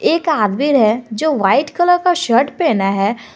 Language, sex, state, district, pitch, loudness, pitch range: Hindi, female, Jharkhand, Garhwa, 275 Hz, -15 LUFS, 215-325 Hz